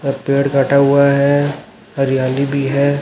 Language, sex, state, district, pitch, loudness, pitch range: Hindi, male, Chhattisgarh, Raipur, 140 Hz, -15 LUFS, 135-140 Hz